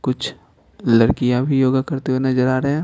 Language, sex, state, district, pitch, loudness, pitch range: Hindi, male, Bihar, Patna, 130 Hz, -18 LUFS, 125-135 Hz